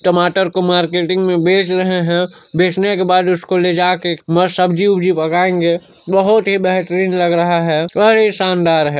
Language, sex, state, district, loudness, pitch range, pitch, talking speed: Hindi, male, Chhattisgarh, Sarguja, -14 LUFS, 175-185 Hz, 180 Hz, 165 wpm